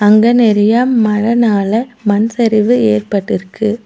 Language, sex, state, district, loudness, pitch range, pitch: Tamil, female, Tamil Nadu, Nilgiris, -12 LUFS, 210-235 Hz, 220 Hz